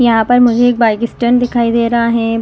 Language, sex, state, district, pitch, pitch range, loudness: Hindi, female, Chhattisgarh, Rajnandgaon, 235 Hz, 230-240 Hz, -12 LUFS